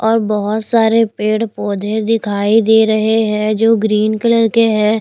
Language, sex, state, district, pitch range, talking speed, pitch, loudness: Hindi, female, Haryana, Jhajjar, 210-225 Hz, 155 wpm, 220 Hz, -14 LUFS